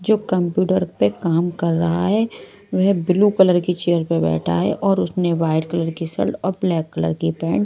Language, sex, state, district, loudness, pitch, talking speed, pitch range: Hindi, male, Odisha, Malkangiri, -19 LUFS, 175 Hz, 210 wpm, 160-190 Hz